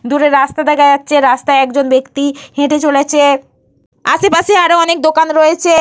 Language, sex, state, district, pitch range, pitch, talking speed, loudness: Bengali, female, Jharkhand, Jamtara, 280-315 Hz, 290 Hz, 145 wpm, -11 LUFS